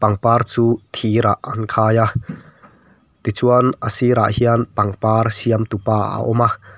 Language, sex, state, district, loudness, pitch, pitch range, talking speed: Mizo, male, Mizoram, Aizawl, -17 LUFS, 115 Hz, 110-120 Hz, 150 wpm